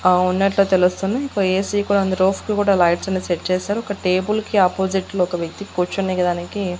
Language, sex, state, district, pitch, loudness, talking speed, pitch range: Telugu, female, Andhra Pradesh, Annamaya, 190 Hz, -19 LUFS, 205 wpm, 180-200 Hz